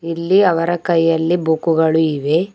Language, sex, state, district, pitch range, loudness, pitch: Kannada, female, Karnataka, Bidar, 160-175 Hz, -16 LUFS, 165 Hz